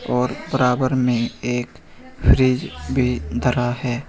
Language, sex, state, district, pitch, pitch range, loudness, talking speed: Hindi, male, Uttar Pradesh, Shamli, 125 Hz, 125-130 Hz, -20 LUFS, 115 wpm